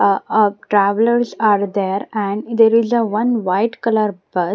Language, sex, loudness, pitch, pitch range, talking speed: English, female, -17 LUFS, 215 Hz, 200-230 Hz, 170 wpm